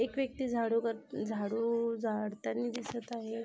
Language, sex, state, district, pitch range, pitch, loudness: Marathi, female, Maharashtra, Aurangabad, 225-240 Hz, 230 Hz, -35 LUFS